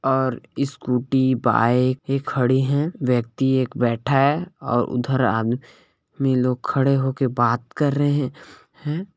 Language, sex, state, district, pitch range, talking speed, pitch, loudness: Hindi, male, Chhattisgarh, Balrampur, 125-140 Hz, 120 wpm, 130 Hz, -21 LUFS